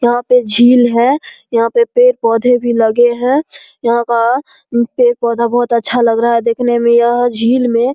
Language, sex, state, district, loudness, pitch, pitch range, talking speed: Hindi, female, Bihar, Saharsa, -12 LUFS, 240 Hz, 235-250 Hz, 180 wpm